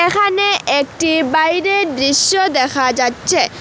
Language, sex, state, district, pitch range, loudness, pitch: Bengali, female, Assam, Hailakandi, 275-380 Hz, -14 LUFS, 325 Hz